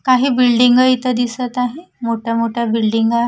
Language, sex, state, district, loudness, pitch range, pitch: Marathi, female, Maharashtra, Washim, -16 LUFS, 230-255 Hz, 245 Hz